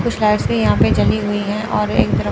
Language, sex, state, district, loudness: Hindi, female, Chandigarh, Chandigarh, -16 LUFS